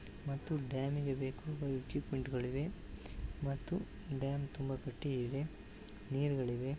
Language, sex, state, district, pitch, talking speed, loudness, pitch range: Kannada, male, Karnataka, Bellary, 135 Hz, 105 wpm, -40 LUFS, 130-145 Hz